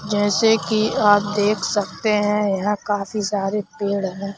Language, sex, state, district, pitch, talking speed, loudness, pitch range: Hindi, male, Madhya Pradesh, Bhopal, 205 Hz, 150 wpm, -20 LUFS, 200-210 Hz